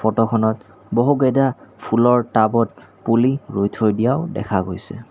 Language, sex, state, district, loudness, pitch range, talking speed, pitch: Assamese, male, Assam, Kamrup Metropolitan, -19 LUFS, 110-125 Hz, 140 wpm, 115 Hz